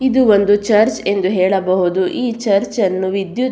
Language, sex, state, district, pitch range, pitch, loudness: Kannada, female, Karnataka, Belgaum, 190-230 Hz, 200 Hz, -15 LUFS